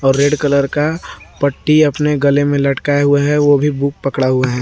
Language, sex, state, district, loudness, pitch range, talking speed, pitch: Hindi, male, Jharkhand, Garhwa, -14 LUFS, 140-150 Hz, 220 wpm, 145 Hz